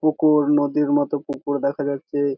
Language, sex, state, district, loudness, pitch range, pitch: Bengali, male, West Bengal, Jhargram, -21 LUFS, 140-150 Hz, 145 Hz